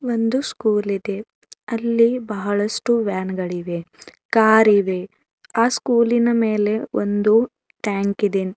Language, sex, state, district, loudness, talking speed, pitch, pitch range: Kannada, female, Karnataka, Bidar, -20 LUFS, 90 wpm, 215 Hz, 200-230 Hz